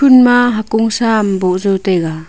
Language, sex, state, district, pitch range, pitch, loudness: Wancho, female, Arunachal Pradesh, Longding, 190-240 Hz, 215 Hz, -12 LUFS